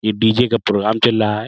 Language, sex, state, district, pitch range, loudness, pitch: Hindi, male, Uttar Pradesh, Budaun, 105-115 Hz, -16 LUFS, 110 Hz